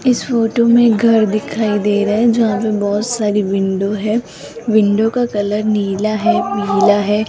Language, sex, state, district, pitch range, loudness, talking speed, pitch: Hindi, female, Rajasthan, Jaipur, 205-230 Hz, -15 LUFS, 175 wpm, 215 Hz